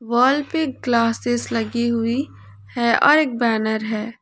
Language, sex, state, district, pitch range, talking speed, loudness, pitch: Hindi, female, Jharkhand, Ranchi, 225-250 Hz, 140 wpm, -19 LUFS, 235 Hz